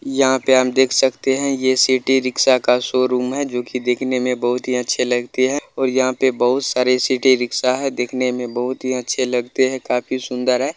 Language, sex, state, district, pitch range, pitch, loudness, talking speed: Hindi, male, Bihar, Lakhisarai, 125-130 Hz, 130 Hz, -18 LUFS, 200 wpm